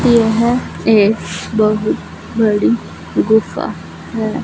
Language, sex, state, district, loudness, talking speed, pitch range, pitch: Hindi, female, Punjab, Fazilka, -16 LUFS, 80 wpm, 205-225 Hz, 220 Hz